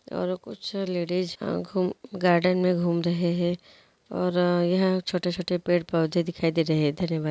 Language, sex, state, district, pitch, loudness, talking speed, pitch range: Hindi, female, Andhra Pradesh, Guntur, 175 Hz, -26 LUFS, 165 wpm, 170-180 Hz